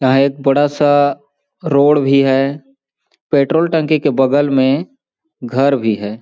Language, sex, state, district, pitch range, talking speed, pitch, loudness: Hindi, male, Chhattisgarh, Balrampur, 135-150 Hz, 145 wpm, 140 Hz, -14 LUFS